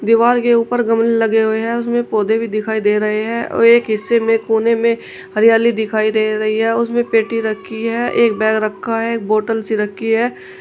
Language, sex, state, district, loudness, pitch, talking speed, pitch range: Hindi, female, Uttar Pradesh, Shamli, -16 LUFS, 225 Hz, 215 wpm, 215-230 Hz